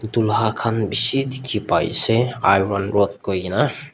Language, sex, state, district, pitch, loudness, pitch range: Nagamese, male, Nagaland, Dimapur, 110 Hz, -19 LUFS, 100-115 Hz